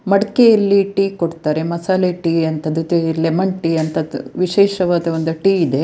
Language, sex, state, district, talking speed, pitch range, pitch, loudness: Kannada, female, Karnataka, Dakshina Kannada, 145 wpm, 160-195 Hz, 170 Hz, -16 LUFS